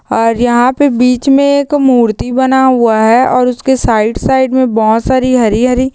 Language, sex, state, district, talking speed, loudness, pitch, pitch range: Hindi, female, Bihar, Purnia, 190 wpm, -10 LUFS, 250 Hz, 230-265 Hz